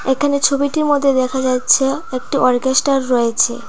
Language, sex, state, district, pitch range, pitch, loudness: Bengali, female, Tripura, Dhalai, 250-280 Hz, 265 Hz, -15 LUFS